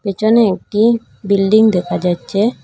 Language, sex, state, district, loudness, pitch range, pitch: Bengali, female, Assam, Hailakandi, -14 LUFS, 195-220 Hz, 205 Hz